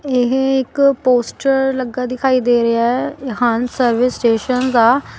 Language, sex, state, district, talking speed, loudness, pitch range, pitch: Punjabi, female, Punjab, Kapurthala, 140 wpm, -16 LUFS, 240-265 Hz, 250 Hz